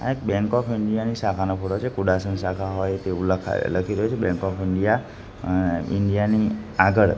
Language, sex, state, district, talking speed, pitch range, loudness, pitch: Gujarati, male, Gujarat, Gandhinagar, 190 wpm, 95-110 Hz, -23 LUFS, 100 Hz